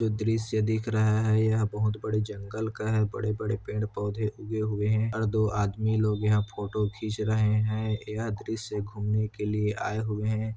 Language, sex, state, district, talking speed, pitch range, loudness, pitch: Hindi, male, Chhattisgarh, Kabirdham, 200 wpm, 105-110 Hz, -28 LUFS, 110 Hz